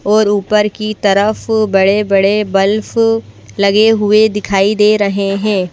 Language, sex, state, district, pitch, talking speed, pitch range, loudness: Hindi, female, Madhya Pradesh, Bhopal, 210 Hz, 125 wpm, 200-215 Hz, -12 LUFS